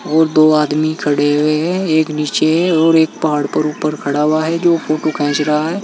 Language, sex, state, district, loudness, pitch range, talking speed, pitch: Hindi, male, Uttar Pradesh, Saharanpur, -14 LUFS, 150-160 Hz, 225 wpm, 155 Hz